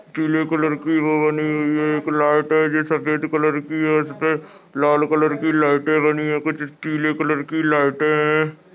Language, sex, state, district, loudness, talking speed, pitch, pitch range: Hindi, male, Chhattisgarh, Balrampur, -19 LUFS, 190 wpm, 155 Hz, 150-155 Hz